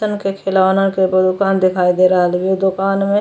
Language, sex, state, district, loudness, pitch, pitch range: Bhojpuri, female, Uttar Pradesh, Gorakhpur, -15 LUFS, 190 Hz, 185-195 Hz